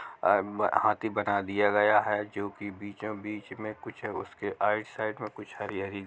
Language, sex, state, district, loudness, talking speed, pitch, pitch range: Hindi, male, Jharkhand, Jamtara, -30 LUFS, 170 wpm, 105 Hz, 100-105 Hz